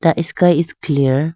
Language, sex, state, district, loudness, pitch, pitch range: English, female, Arunachal Pradesh, Lower Dibang Valley, -16 LUFS, 165 Hz, 145-170 Hz